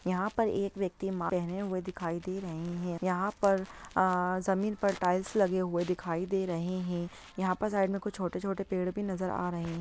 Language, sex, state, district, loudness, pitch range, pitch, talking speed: Hindi, female, Bihar, Jahanabad, -32 LUFS, 180-195 Hz, 185 Hz, 215 wpm